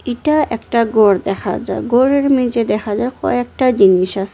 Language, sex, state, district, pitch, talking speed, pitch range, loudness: Bengali, female, Assam, Hailakandi, 235 Hz, 165 wpm, 200-255 Hz, -15 LUFS